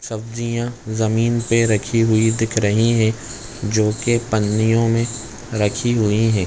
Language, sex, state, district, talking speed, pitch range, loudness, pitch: Hindi, male, Chhattisgarh, Bilaspur, 140 wpm, 110-115 Hz, -19 LUFS, 115 Hz